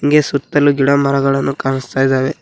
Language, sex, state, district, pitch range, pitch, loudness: Kannada, male, Karnataka, Koppal, 135-145 Hz, 140 Hz, -15 LUFS